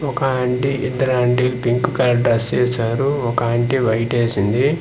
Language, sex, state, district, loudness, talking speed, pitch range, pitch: Telugu, male, Andhra Pradesh, Manyam, -18 LUFS, 150 wpm, 120-135 Hz, 125 Hz